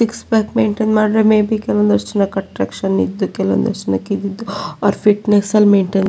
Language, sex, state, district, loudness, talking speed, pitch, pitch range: Kannada, female, Karnataka, Shimoga, -16 LUFS, 120 wpm, 205 Hz, 175-215 Hz